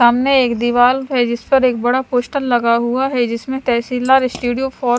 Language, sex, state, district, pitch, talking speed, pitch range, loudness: Hindi, male, Punjab, Fazilka, 245 Hz, 205 wpm, 240-265 Hz, -16 LUFS